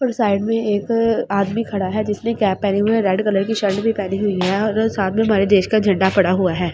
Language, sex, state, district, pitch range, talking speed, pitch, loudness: Hindi, male, Delhi, New Delhi, 195-220 Hz, 265 wpm, 205 Hz, -18 LUFS